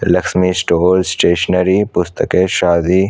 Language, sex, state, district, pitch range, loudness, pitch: Hindi, male, Chhattisgarh, Korba, 90-95 Hz, -14 LUFS, 90 Hz